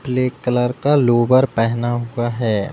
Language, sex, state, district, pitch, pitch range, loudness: Hindi, male, Uttar Pradesh, Deoria, 125 Hz, 120-130 Hz, -18 LUFS